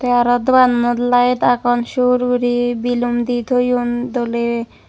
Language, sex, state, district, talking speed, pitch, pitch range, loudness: Chakma, female, Tripura, Dhalai, 135 wpm, 245 Hz, 240-245 Hz, -16 LUFS